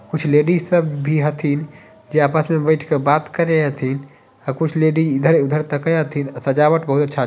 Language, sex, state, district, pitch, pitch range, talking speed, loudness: Maithili, male, Bihar, Samastipur, 150 Hz, 140-155 Hz, 190 wpm, -18 LUFS